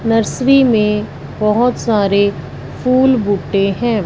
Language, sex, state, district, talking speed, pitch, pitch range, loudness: Hindi, female, Punjab, Fazilka, 105 wpm, 215 Hz, 200-240 Hz, -14 LUFS